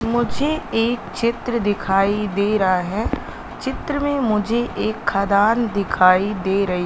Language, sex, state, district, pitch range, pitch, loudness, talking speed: Hindi, female, Madhya Pradesh, Katni, 195-235 Hz, 210 Hz, -20 LUFS, 130 wpm